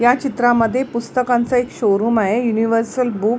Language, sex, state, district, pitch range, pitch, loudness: Marathi, female, Maharashtra, Mumbai Suburban, 225-245 Hz, 235 Hz, -17 LUFS